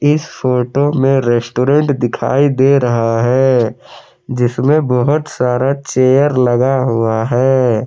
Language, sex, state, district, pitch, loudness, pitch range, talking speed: Hindi, male, Jharkhand, Palamu, 130 Hz, -13 LUFS, 120-140 Hz, 115 wpm